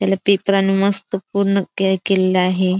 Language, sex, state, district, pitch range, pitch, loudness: Marathi, female, Maharashtra, Dhule, 190-195 Hz, 195 Hz, -17 LUFS